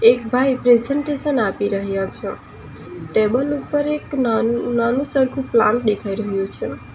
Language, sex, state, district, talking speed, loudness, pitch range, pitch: Gujarati, female, Gujarat, Valsad, 140 wpm, -19 LUFS, 210-270 Hz, 235 Hz